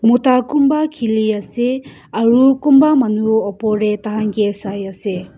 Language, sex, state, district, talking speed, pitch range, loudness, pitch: Nagamese, female, Nagaland, Kohima, 100 wpm, 210-255 Hz, -15 LUFS, 220 Hz